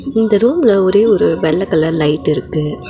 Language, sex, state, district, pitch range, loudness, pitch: Tamil, female, Tamil Nadu, Nilgiris, 155-225 Hz, -13 LUFS, 190 Hz